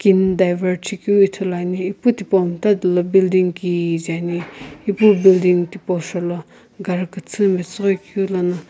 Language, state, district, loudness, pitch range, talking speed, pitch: Sumi, Nagaland, Kohima, -18 LUFS, 175-195 Hz, 140 wpm, 185 Hz